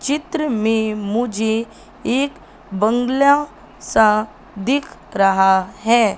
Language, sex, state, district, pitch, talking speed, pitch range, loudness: Hindi, female, Madhya Pradesh, Katni, 225 Hz, 85 wpm, 210-270 Hz, -18 LUFS